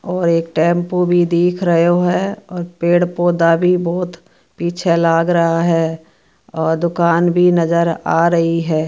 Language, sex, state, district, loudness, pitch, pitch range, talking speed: Marwari, female, Rajasthan, Churu, -15 LUFS, 170 Hz, 165-175 Hz, 155 wpm